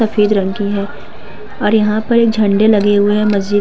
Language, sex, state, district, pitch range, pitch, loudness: Hindi, female, Uttar Pradesh, Hamirpur, 205-215 Hz, 210 Hz, -13 LUFS